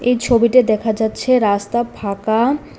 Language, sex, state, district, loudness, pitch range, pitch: Bengali, female, Tripura, West Tripura, -16 LUFS, 215-245 Hz, 235 Hz